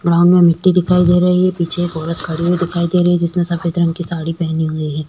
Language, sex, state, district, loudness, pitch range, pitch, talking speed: Hindi, female, Chhattisgarh, Korba, -15 LUFS, 165-175 Hz, 170 Hz, 280 wpm